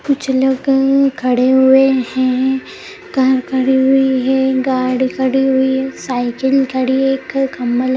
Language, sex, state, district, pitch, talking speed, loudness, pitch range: Hindi, female, Bihar, Begusarai, 265 Hz, 145 wpm, -14 LUFS, 260-270 Hz